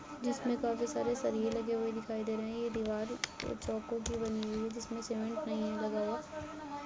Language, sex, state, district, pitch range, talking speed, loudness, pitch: Hindi, female, Uttar Pradesh, Jalaun, 220-240 Hz, 210 wpm, -37 LUFS, 225 Hz